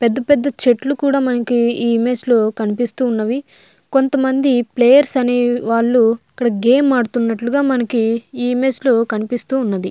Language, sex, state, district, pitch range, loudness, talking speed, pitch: Telugu, female, Andhra Pradesh, Guntur, 230-265 Hz, -16 LUFS, 105 wpm, 245 Hz